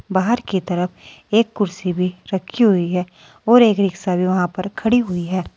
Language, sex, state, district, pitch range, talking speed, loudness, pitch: Hindi, female, Uttar Pradesh, Saharanpur, 180-210 Hz, 185 wpm, -19 LUFS, 185 Hz